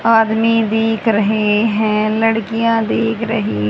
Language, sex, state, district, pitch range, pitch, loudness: Hindi, female, Haryana, Jhajjar, 215-225 Hz, 225 Hz, -15 LUFS